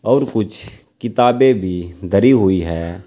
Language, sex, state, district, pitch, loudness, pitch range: Hindi, male, Uttar Pradesh, Saharanpur, 100 Hz, -16 LUFS, 90-120 Hz